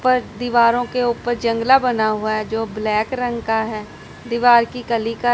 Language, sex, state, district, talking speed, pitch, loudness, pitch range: Hindi, female, Punjab, Pathankot, 190 wpm, 235 Hz, -18 LUFS, 220-245 Hz